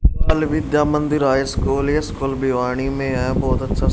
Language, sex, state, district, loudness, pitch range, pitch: Hindi, male, Haryana, Jhajjar, -19 LUFS, 125-150 Hz, 135 Hz